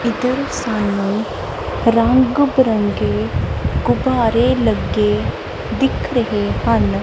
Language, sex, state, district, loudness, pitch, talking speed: Punjabi, female, Punjab, Kapurthala, -17 LUFS, 200 Hz, 75 wpm